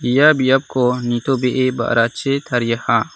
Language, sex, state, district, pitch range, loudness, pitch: Garo, male, Meghalaya, South Garo Hills, 120-135 Hz, -17 LUFS, 125 Hz